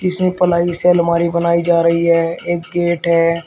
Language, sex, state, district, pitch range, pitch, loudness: Hindi, male, Uttar Pradesh, Shamli, 170-175 Hz, 170 Hz, -15 LUFS